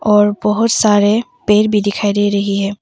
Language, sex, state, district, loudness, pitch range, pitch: Hindi, female, Arunachal Pradesh, Papum Pare, -14 LUFS, 205-215 Hz, 205 Hz